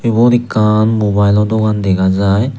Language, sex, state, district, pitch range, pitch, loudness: Chakma, male, Tripura, Unakoti, 100-110 Hz, 105 Hz, -12 LUFS